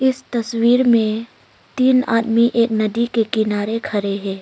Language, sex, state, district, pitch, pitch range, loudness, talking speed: Hindi, female, Arunachal Pradesh, Longding, 230 Hz, 215-240 Hz, -18 LUFS, 150 wpm